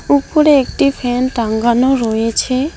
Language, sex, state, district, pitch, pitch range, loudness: Bengali, female, West Bengal, Alipurduar, 255 Hz, 235-275 Hz, -14 LUFS